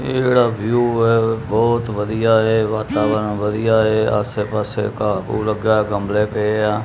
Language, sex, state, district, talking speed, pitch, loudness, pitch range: Punjabi, male, Punjab, Kapurthala, 175 wpm, 110 Hz, -18 LUFS, 105-115 Hz